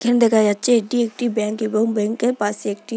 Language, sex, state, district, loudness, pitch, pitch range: Bengali, female, West Bengal, Dakshin Dinajpur, -19 LUFS, 220 Hz, 210-235 Hz